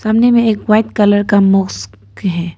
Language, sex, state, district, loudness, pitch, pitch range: Hindi, female, Arunachal Pradesh, Papum Pare, -13 LUFS, 205 Hz, 180-215 Hz